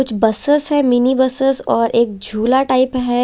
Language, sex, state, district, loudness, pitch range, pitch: Hindi, female, Chandigarh, Chandigarh, -15 LUFS, 230-265 Hz, 255 Hz